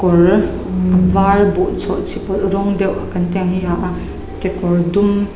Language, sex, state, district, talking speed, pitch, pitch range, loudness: Mizo, female, Mizoram, Aizawl, 170 wpm, 190 Hz, 180-195 Hz, -16 LUFS